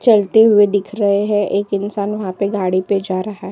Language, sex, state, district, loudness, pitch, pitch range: Hindi, female, Uttar Pradesh, Jyotiba Phule Nagar, -16 LUFS, 200 Hz, 200-210 Hz